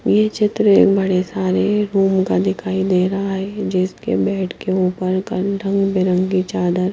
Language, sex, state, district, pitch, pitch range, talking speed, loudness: Hindi, female, Himachal Pradesh, Shimla, 190 Hz, 185-195 Hz, 165 wpm, -18 LUFS